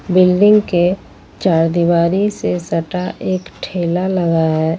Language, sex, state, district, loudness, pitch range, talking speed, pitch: Hindi, female, Jharkhand, Ranchi, -15 LUFS, 165-185 Hz, 125 wpm, 175 Hz